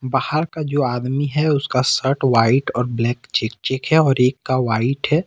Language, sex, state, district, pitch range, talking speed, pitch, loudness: Hindi, male, Jharkhand, Ranchi, 125-145 Hz, 205 wpm, 130 Hz, -19 LUFS